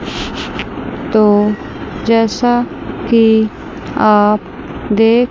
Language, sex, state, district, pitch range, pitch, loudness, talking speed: Hindi, female, Chandigarh, Chandigarh, 210-230 Hz, 220 Hz, -14 LUFS, 55 wpm